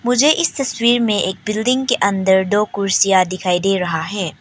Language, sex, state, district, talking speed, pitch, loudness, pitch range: Hindi, female, Arunachal Pradesh, Papum Pare, 190 wpm, 200 Hz, -16 LUFS, 190-240 Hz